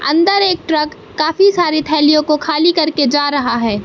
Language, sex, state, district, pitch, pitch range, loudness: Hindi, male, Madhya Pradesh, Katni, 310 Hz, 295-340 Hz, -13 LUFS